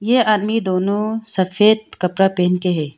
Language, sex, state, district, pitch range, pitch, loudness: Hindi, female, Arunachal Pradesh, Longding, 185-220 Hz, 195 Hz, -17 LUFS